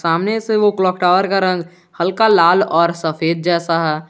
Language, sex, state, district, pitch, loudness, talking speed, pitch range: Hindi, male, Jharkhand, Garhwa, 175 Hz, -15 LUFS, 190 wpm, 165-190 Hz